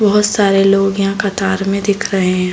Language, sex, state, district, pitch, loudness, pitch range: Hindi, female, Bihar, Saran, 195 Hz, -14 LUFS, 195-200 Hz